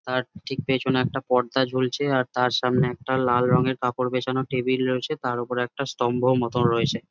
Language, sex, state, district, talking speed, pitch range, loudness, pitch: Bengali, male, West Bengal, Jhargram, 185 wpm, 125-130 Hz, -24 LUFS, 125 Hz